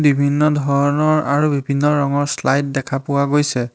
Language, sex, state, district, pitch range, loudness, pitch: Assamese, male, Assam, Hailakandi, 140-150 Hz, -17 LUFS, 145 Hz